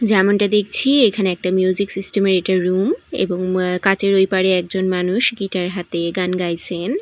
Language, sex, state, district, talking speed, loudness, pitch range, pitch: Bengali, female, Odisha, Malkangiri, 160 wpm, -18 LUFS, 180-200 Hz, 190 Hz